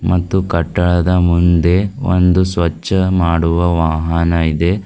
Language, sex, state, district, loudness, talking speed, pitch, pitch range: Kannada, female, Karnataka, Bidar, -14 LUFS, 100 wpm, 85 Hz, 85-90 Hz